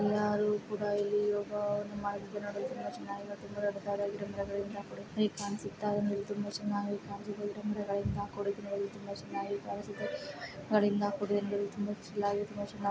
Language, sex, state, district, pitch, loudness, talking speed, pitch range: Kannada, female, Karnataka, Shimoga, 205 Hz, -35 LUFS, 155 wpm, 200-205 Hz